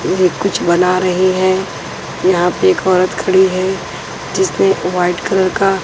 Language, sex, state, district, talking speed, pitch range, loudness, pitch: Hindi, female, Punjab, Pathankot, 145 wpm, 180-190 Hz, -14 LUFS, 185 Hz